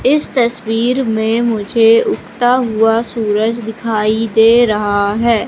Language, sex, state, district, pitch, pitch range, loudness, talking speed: Hindi, female, Madhya Pradesh, Katni, 225 Hz, 220-235 Hz, -14 LUFS, 120 wpm